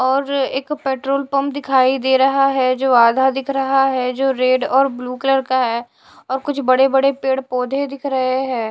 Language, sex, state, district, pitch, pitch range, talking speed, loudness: Hindi, female, Odisha, Sambalpur, 265 Hz, 255-275 Hz, 185 wpm, -17 LUFS